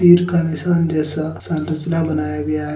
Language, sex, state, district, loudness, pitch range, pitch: Hindi, male, Jharkhand, Deoghar, -19 LUFS, 155-170 Hz, 160 Hz